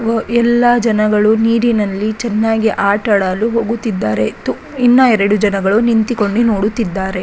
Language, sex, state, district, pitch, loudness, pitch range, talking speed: Kannada, female, Karnataka, Raichur, 220 Hz, -14 LUFS, 205-230 Hz, 90 wpm